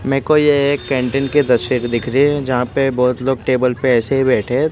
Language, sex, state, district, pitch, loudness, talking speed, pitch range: Hindi, male, Gujarat, Gandhinagar, 135 Hz, -16 LUFS, 240 wpm, 125-140 Hz